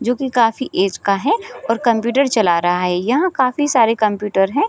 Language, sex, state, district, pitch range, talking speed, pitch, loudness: Hindi, female, Bihar, Sitamarhi, 205-265 Hz, 205 wpm, 230 Hz, -17 LUFS